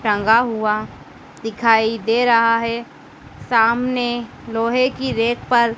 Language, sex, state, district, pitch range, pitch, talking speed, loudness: Hindi, female, Madhya Pradesh, Dhar, 225-240 Hz, 230 Hz, 115 wpm, -18 LUFS